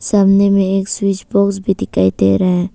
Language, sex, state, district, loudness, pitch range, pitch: Hindi, female, Arunachal Pradesh, Papum Pare, -14 LUFS, 180-200 Hz, 195 Hz